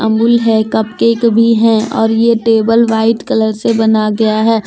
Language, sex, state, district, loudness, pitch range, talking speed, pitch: Hindi, female, Jharkhand, Deoghar, -11 LUFS, 220-230 Hz, 195 wpm, 225 Hz